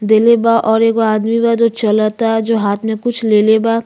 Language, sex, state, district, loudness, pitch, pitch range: Bhojpuri, female, Uttar Pradesh, Ghazipur, -13 LUFS, 225 Hz, 220-230 Hz